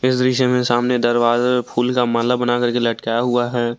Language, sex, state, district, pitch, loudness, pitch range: Hindi, male, Jharkhand, Garhwa, 120 Hz, -18 LUFS, 120-125 Hz